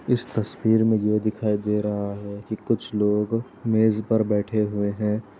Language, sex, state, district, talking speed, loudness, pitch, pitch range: Hindi, male, Uttar Pradesh, Etah, 180 wpm, -24 LUFS, 105 Hz, 105-110 Hz